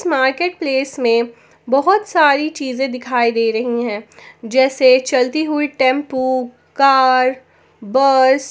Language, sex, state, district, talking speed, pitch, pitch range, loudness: Hindi, female, Jharkhand, Ranchi, 115 wpm, 260 Hz, 245-275 Hz, -15 LUFS